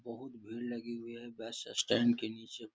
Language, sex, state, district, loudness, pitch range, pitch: Hindi, male, Bihar, Gaya, -37 LUFS, 115-120 Hz, 115 Hz